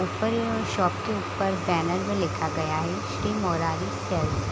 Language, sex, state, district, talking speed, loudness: Hindi, female, Bihar, Sitamarhi, 185 wpm, -27 LUFS